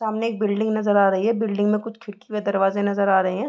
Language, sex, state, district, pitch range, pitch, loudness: Hindi, female, Bihar, Gopalganj, 200-220 Hz, 205 Hz, -21 LUFS